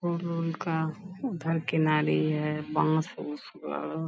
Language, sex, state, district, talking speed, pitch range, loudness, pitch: Hindi, female, Bihar, Bhagalpur, 105 wpm, 155-170 Hz, -29 LUFS, 160 Hz